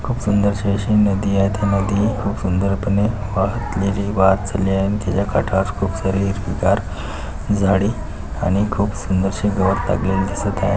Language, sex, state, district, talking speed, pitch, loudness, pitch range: Marathi, male, Maharashtra, Solapur, 130 wpm, 100 Hz, -19 LUFS, 95-100 Hz